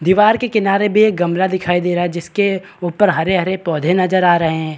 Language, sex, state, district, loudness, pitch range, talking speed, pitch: Hindi, male, Bihar, Kishanganj, -15 LUFS, 175-200 Hz, 225 wpm, 185 Hz